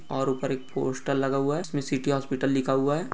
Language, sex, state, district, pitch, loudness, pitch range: Hindi, male, Uttar Pradesh, Etah, 135 Hz, -27 LUFS, 135-140 Hz